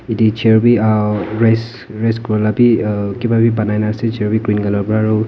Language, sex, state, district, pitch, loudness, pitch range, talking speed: Nagamese, male, Nagaland, Kohima, 110 Hz, -15 LUFS, 105-115 Hz, 195 wpm